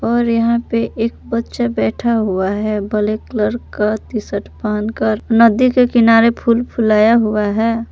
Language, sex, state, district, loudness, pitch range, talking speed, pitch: Hindi, female, Jharkhand, Palamu, -15 LUFS, 210-235 Hz, 160 wpm, 225 Hz